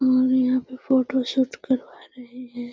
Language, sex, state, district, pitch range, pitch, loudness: Hindi, female, Bihar, Gaya, 255-260 Hz, 255 Hz, -22 LUFS